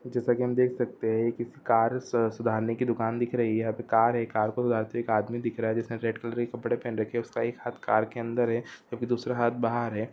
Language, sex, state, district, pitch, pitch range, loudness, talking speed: Hindi, male, Bihar, Saran, 115 Hz, 115-120 Hz, -28 LUFS, 270 wpm